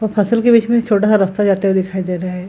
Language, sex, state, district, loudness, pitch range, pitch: Hindi, female, Bihar, Gaya, -15 LUFS, 190-220 Hz, 205 Hz